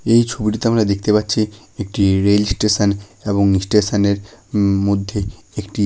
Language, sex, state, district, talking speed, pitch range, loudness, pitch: Bengali, male, West Bengal, Malda, 135 wpm, 100-105 Hz, -17 LUFS, 105 Hz